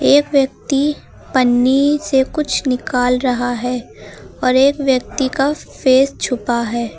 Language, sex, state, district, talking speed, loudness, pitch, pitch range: Hindi, female, Uttar Pradesh, Lucknow, 130 wpm, -16 LUFS, 260 Hz, 250-275 Hz